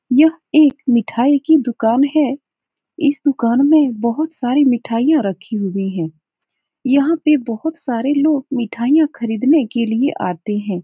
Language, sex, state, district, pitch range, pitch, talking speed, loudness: Hindi, female, Uttar Pradesh, Etah, 230-300 Hz, 265 Hz, 145 wpm, -16 LUFS